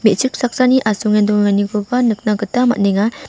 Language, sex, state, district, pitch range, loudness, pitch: Garo, female, Meghalaya, West Garo Hills, 210-250 Hz, -15 LUFS, 215 Hz